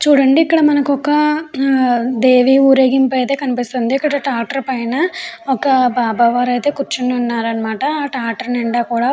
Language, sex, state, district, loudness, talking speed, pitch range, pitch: Telugu, female, Andhra Pradesh, Chittoor, -15 LUFS, 150 wpm, 245-285 Hz, 265 Hz